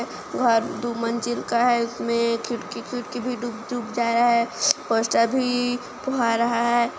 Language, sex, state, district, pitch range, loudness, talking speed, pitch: Hindi, female, Chhattisgarh, Kabirdham, 235-245 Hz, -23 LUFS, 180 wpm, 240 Hz